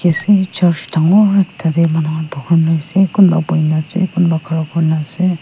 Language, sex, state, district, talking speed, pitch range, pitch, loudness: Nagamese, female, Nagaland, Kohima, 135 wpm, 160-185 Hz, 165 Hz, -14 LUFS